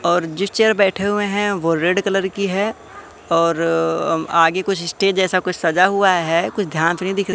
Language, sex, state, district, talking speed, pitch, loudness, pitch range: Hindi, male, Madhya Pradesh, Katni, 195 wpm, 185 Hz, -18 LUFS, 165-200 Hz